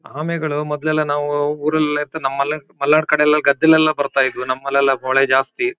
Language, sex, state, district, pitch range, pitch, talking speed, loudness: Kannada, male, Karnataka, Shimoga, 140-155 Hz, 150 Hz, 135 wpm, -17 LUFS